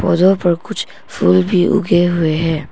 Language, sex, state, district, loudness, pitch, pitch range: Hindi, female, Arunachal Pradesh, Papum Pare, -15 LUFS, 175 Hz, 160-185 Hz